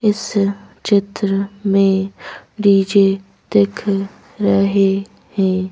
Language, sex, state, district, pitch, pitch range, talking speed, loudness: Hindi, female, Madhya Pradesh, Bhopal, 195 Hz, 195-205 Hz, 50 wpm, -17 LUFS